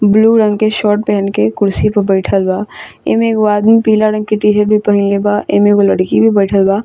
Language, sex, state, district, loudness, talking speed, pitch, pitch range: Bhojpuri, female, Bihar, Saran, -12 LUFS, 255 wpm, 205 Hz, 200-215 Hz